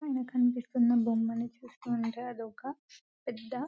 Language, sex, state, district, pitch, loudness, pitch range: Telugu, female, Telangana, Nalgonda, 245 Hz, -32 LUFS, 230-255 Hz